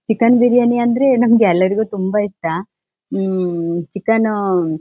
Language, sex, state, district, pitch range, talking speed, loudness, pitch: Kannada, female, Karnataka, Shimoga, 180-230 Hz, 110 wpm, -16 LUFS, 205 Hz